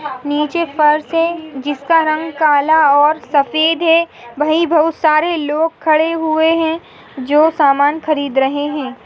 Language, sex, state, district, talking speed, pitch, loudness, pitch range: Hindi, female, Goa, North and South Goa, 140 wpm, 310 Hz, -14 LUFS, 290-325 Hz